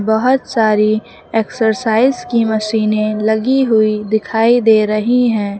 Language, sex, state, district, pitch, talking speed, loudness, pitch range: Hindi, female, Uttar Pradesh, Lucknow, 220 Hz, 120 wpm, -14 LUFS, 215-235 Hz